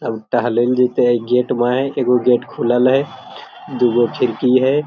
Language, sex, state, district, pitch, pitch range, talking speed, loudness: Maithili, male, Bihar, Begusarai, 125 Hz, 120-130 Hz, 170 wpm, -16 LUFS